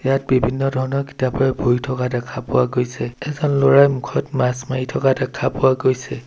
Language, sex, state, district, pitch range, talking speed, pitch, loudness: Assamese, male, Assam, Sonitpur, 125-135 Hz, 170 wpm, 130 Hz, -19 LUFS